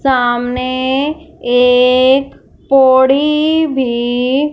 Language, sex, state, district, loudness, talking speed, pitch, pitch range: Hindi, female, Punjab, Fazilka, -12 LUFS, 55 wpm, 260 Hz, 250-280 Hz